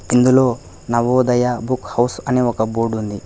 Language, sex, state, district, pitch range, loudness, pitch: Telugu, male, Telangana, Hyderabad, 115-125 Hz, -17 LUFS, 120 Hz